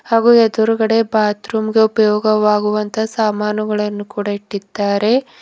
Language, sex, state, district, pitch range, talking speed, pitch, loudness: Kannada, female, Karnataka, Bidar, 210-220 Hz, 75 wpm, 215 Hz, -16 LUFS